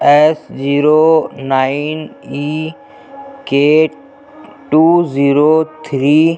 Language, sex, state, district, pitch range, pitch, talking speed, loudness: Hindi, male, Chhattisgarh, Jashpur, 145-165 Hz, 155 Hz, 85 wpm, -13 LUFS